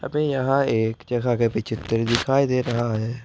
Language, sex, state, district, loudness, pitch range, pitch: Hindi, male, Jharkhand, Ranchi, -22 LUFS, 115-130 Hz, 120 Hz